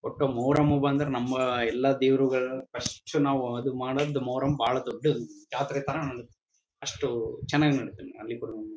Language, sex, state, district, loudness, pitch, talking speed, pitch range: Kannada, male, Karnataka, Bellary, -28 LUFS, 135 Hz, 130 wpm, 130-145 Hz